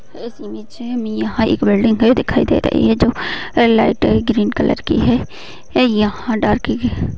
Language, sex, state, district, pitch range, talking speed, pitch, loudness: Hindi, female, Maharashtra, Sindhudurg, 205-235 Hz, 125 wpm, 225 Hz, -16 LUFS